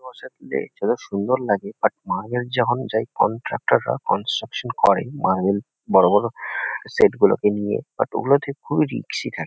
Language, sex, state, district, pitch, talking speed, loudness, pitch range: Bengali, male, West Bengal, Kolkata, 115 Hz, 145 wpm, -21 LUFS, 100-130 Hz